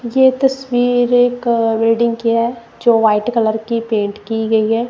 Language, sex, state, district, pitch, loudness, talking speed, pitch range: Hindi, female, Punjab, Kapurthala, 230 Hz, -15 LUFS, 170 wpm, 225-245 Hz